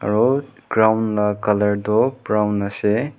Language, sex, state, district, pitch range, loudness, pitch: Nagamese, male, Nagaland, Kohima, 105-115 Hz, -19 LUFS, 105 Hz